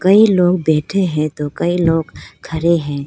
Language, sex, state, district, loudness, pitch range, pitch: Hindi, female, Arunachal Pradesh, Lower Dibang Valley, -16 LUFS, 155-180 Hz, 165 Hz